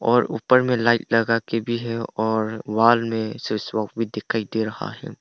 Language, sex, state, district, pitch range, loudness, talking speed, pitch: Hindi, male, Arunachal Pradesh, Papum Pare, 110-115 Hz, -22 LUFS, 195 wpm, 115 Hz